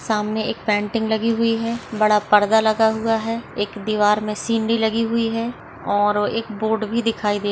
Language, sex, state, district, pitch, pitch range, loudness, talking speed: Hindi, female, Chhattisgarh, Sarguja, 220 Hz, 210-225 Hz, -20 LUFS, 190 wpm